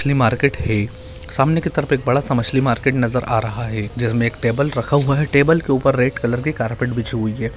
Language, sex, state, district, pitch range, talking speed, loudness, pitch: Hindi, male, Bihar, Purnia, 115-140 Hz, 270 wpm, -18 LUFS, 120 Hz